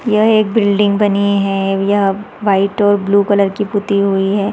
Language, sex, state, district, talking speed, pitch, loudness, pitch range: Hindi, female, Chhattisgarh, Raigarh, 185 wpm, 200 Hz, -14 LUFS, 200-205 Hz